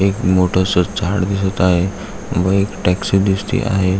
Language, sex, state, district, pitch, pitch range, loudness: Marathi, male, Maharashtra, Aurangabad, 95 Hz, 90-100 Hz, -17 LUFS